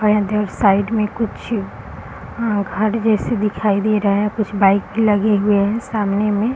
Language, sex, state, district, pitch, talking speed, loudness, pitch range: Hindi, female, Bihar, Araria, 210 Hz, 175 wpm, -18 LUFS, 205-215 Hz